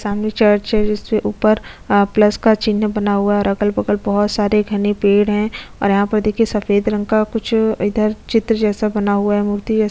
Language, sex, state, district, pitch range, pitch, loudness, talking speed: Hindi, female, Chhattisgarh, Sukma, 205-215 Hz, 210 Hz, -16 LUFS, 205 wpm